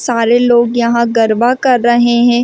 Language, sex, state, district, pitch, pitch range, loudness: Hindi, female, Chhattisgarh, Rajnandgaon, 240 Hz, 235-240 Hz, -11 LUFS